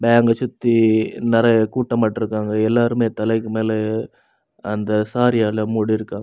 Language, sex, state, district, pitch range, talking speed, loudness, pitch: Tamil, male, Tamil Nadu, Kanyakumari, 110-115 Hz, 105 wpm, -19 LUFS, 110 Hz